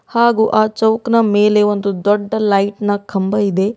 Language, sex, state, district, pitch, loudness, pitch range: Kannada, female, Karnataka, Bidar, 210 Hz, -15 LUFS, 200-220 Hz